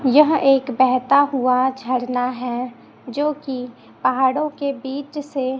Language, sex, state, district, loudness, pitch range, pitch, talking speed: Hindi, female, Chhattisgarh, Raipur, -20 LUFS, 255-280 Hz, 260 Hz, 130 wpm